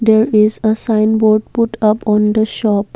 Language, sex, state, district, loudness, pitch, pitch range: English, female, Assam, Kamrup Metropolitan, -14 LUFS, 215 Hz, 215-220 Hz